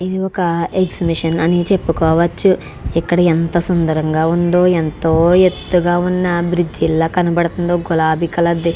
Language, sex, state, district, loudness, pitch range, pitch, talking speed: Telugu, female, Andhra Pradesh, Krishna, -15 LUFS, 165-180 Hz, 170 Hz, 130 wpm